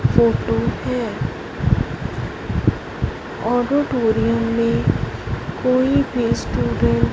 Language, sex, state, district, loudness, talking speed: Hindi, female, Punjab, Fazilka, -20 LUFS, 65 wpm